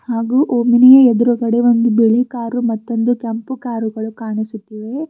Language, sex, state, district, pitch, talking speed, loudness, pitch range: Kannada, female, Karnataka, Bidar, 235 Hz, 105 wpm, -15 LUFS, 225-245 Hz